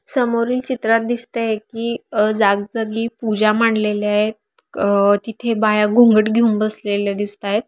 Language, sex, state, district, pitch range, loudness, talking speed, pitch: Marathi, female, Maharashtra, Aurangabad, 210-230 Hz, -18 LUFS, 135 wpm, 220 Hz